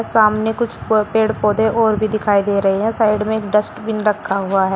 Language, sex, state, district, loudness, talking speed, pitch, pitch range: Hindi, female, Uttar Pradesh, Shamli, -17 LUFS, 215 wpm, 215 Hz, 205-220 Hz